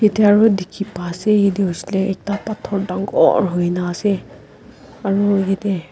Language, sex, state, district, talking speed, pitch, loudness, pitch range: Nagamese, female, Nagaland, Kohima, 130 wpm, 195 Hz, -18 LUFS, 185-205 Hz